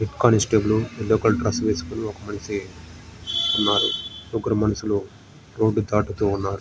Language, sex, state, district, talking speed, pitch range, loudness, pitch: Telugu, male, Andhra Pradesh, Srikakulam, 125 wpm, 100-110 Hz, -22 LUFS, 105 Hz